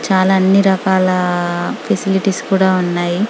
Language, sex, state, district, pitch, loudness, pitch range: Telugu, female, Telangana, Karimnagar, 190 Hz, -15 LUFS, 180-195 Hz